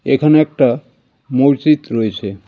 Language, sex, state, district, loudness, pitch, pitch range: Bengali, male, West Bengal, Cooch Behar, -14 LUFS, 130 Hz, 115-150 Hz